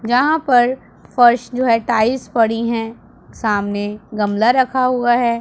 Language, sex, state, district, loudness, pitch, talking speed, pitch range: Hindi, female, Punjab, Pathankot, -16 LUFS, 235 Hz, 145 wpm, 225-250 Hz